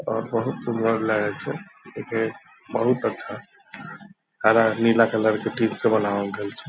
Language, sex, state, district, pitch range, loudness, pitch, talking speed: Hindi, male, Bihar, Purnia, 110-145 Hz, -23 LUFS, 115 Hz, 170 wpm